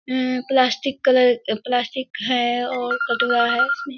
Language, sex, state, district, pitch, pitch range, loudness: Hindi, female, Bihar, Kishanganj, 250 Hz, 235-260 Hz, -20 LUFS